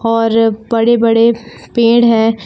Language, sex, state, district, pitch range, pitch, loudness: Hindi, female, Jharkhand, Palamu, 225-235 Hz, 230 Hz, -12 LUFS